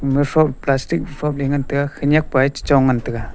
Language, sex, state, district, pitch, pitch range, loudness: Wancho, male, Arunachal Pradesh, Longding, 140 Hz, 135-145 Hz, -18 LUFS